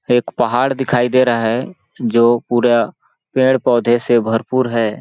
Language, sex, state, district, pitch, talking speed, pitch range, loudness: Hindi, male, Chhattisgarh, Balrampur, 120 Hz, 145 wpm, 115-130 Hz, -16 LUFS